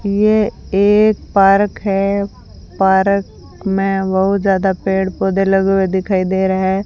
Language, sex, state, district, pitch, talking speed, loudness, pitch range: Hindi, female, Rajasthan, Bikaner, 195 Hz, 140 wpm, -15 LUFS, 190-200 Hz